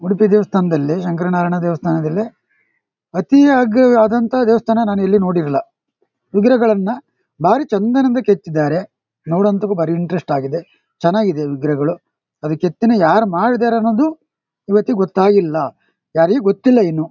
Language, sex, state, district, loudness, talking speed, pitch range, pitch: Kannada, male, Karnataka, Shimoga, -15 LUFS, 125 wpm, 170-230 Hz, 205 Hz